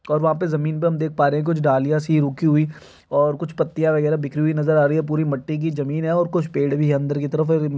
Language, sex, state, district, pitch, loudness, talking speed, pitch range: Hindi, male, Chhattisgarh, Kabirdham, 155 Hz, -20 LUFS, 275 wpm, 145-160 Hz